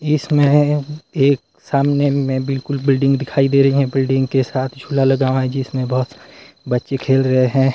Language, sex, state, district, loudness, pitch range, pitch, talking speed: Hindi, male, Himachal Pradesh, Shimla, -17 LUFS, 130-140 Hz, 135 Hz, 180 wpm